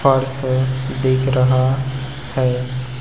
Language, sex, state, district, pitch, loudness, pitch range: Hindi, male, Chhattisgarh, Raipur, 130 Hz, -19 LUFS, 130-135 Hz